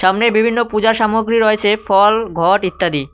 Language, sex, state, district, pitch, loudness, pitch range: Bengali, male, West Bengal, Cooch Behar, 215 Hz, -14 LUFS, 190-225 Hz